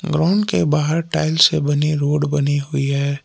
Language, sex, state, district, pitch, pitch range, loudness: Hindi, male, Jharkhand, Palamu, 150 Hz, 145-160 Hz, -18 LUFS